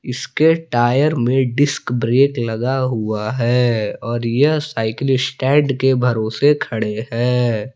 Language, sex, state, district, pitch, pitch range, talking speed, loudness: Hindi, male, Jharkhand, Palamu, 125 Hz, 115-135 Hz, 125 wpm, -17 LUFS